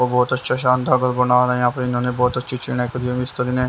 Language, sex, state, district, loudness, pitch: Hindi, male, Haryana, Jhajjar, -19 LUFS, 125 Hz